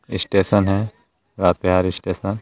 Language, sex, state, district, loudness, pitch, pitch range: Hindi, male, Jharkhand, Garhwa, -19 LUFS, 95 Hz, 90-100 Hz